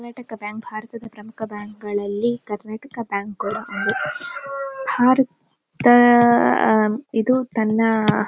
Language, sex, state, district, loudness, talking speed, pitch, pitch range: Kannada, female, Karnataka, Dakshina Kannada, -20 LUFS, 95 wpm, 225 Hz, 215-245 Hz